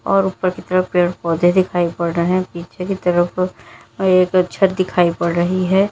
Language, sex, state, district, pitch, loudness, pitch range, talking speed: Hindi, female, Uttar Pradesh, Lalitpur, 185 Hz, -17 LUFS, 175-185 Hz, 190 wpm